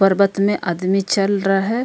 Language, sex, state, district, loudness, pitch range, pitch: Hindi, female, Bihar, Darbhanga, -18 LUFS, 195-200 Hz, 195 Hz